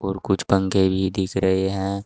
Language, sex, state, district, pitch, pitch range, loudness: Hindi, male, Uttar Pradesh, Shamli, 95 Hz, 95-100 Hz, -21 LUFS